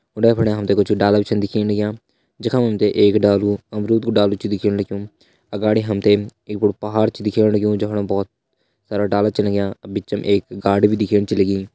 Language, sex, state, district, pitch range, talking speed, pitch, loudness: Hindi, male, Uttarakhand, Uttarkashi, 100-110 Hz, 225 wpm, 105 Hz, -18 LUFS